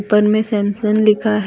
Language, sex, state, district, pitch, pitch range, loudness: Hindi, female, Jharkhand, Deoghar, 210 Hz, 210-215 Hz, -15 LUFS